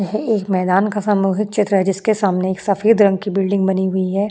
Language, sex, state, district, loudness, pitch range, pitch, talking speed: Hindi, female, Uttar Pradesh, Jyotiba Phule Nagar, -17 LUFS, 190-210 Hz, 195 Hz, 250 wpm